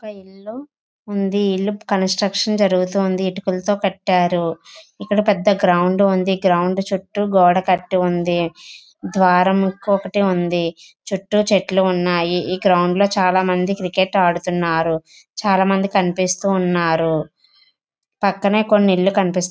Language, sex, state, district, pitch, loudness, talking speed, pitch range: Telugu, female, Andhra Pradesh, Visakhapatnam, 190 Hz, -18 LUFS, 120 wpm, 180-200 Hz